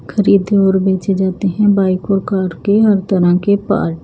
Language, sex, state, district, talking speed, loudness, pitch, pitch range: Hindi, male, Odisha, Nuapada, 205 wpm, -14 LUFS, 195 Hz, 185-200 Hz